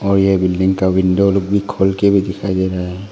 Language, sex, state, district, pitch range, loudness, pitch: Hindi, male, Arunachal Pradesh, Longding, 95-100 Hz, -15 LUFS, 95 Hz